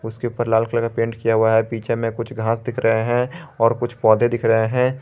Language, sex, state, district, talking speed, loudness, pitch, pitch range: Hindi, male, Jharkhand, Garhwa, 265 wpm, -20 LUFS, 115 Hz, 115-120 Hz